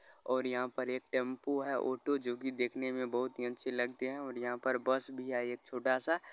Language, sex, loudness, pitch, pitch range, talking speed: Maithili, male, -36 LUFS, 130 Hz, 125-130 Hz, 220 wpm